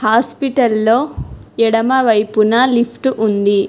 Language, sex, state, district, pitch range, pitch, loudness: Telugu, female, Telangana, Hyderabad, 215-255 Hz, 230 Hz, -14 LUFS